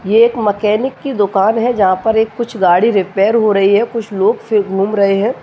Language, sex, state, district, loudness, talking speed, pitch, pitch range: Hindi, male, Bihar, Jahanabad, -13 LUFS, 230 wpm, 210 Hz, 195-230 Hz